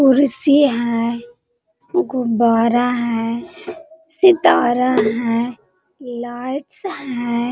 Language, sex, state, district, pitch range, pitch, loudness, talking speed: Hindi, female, Jharkhand, Sahebganj, 235-320 Hz, 250 Hz, -17 LUFS, 65 wpm